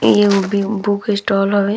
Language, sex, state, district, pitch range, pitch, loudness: Bhojpuri, female, Uttar Pradesh, Deoria, 200-205 Hz, 200 Hz, -16 LUFS